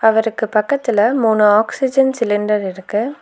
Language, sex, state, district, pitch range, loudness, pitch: Tamil, female, Tamil Nadu, Nilgiris, 210-255 Hz, -16 LUFS, 220 Hz